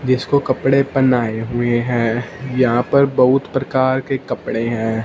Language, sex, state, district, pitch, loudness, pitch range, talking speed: Hindi, male, Punjab, Fazilka, 130 Hz, -17 LUFS, 120-135 Hz, 140 wpm